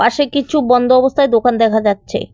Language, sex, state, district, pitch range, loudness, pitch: Bengali, female, West Bengal, Cooch Behar, 230-280 Hz, -13 LUFS, 250 Hz